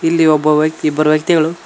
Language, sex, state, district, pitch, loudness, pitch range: Kannada, male, Karnataka, Koppal, 155 Hz, -13 LUFS, 155-165 Hz